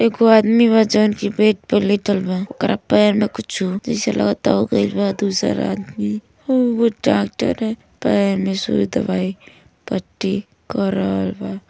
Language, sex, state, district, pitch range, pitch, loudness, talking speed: Bhojpuri, female, Uttar Pradesh, Gorakhpur, 185-215 Hz, 200 Hz, -18 LUFS, 160 wpm